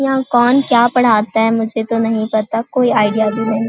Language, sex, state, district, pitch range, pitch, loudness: Hindi, female, Chhattisgarh, Balrampur, 220-240 Hz, 225 Hz, -14 LUFS